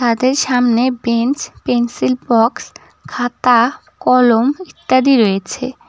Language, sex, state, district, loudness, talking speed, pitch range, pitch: Bengali, female, West Bengal, Cooch Behar, -15 LUFS, 90 wpm, 235-260 Hz, 250 Hz